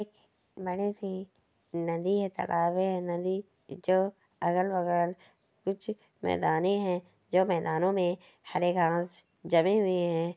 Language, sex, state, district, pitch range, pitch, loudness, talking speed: Hindi, female, Rajasthan, Churu, 175-195 Hz, 180 Hz, -30 LUFS, 120 wpm